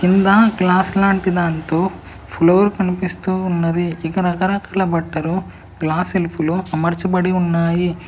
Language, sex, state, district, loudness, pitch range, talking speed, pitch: Telugu, female, Telangana, Mahabubabad, -17 LUFS, 170-190 Hz, 110 wpm, 180 Hz